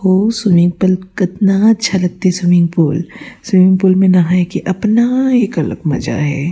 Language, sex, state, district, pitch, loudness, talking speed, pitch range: Chhattisgarhi, female, Chhattisgarh, Rajnandgaon, 185 Hz, -13 LUFS, 155 wpm, 175-210 Hz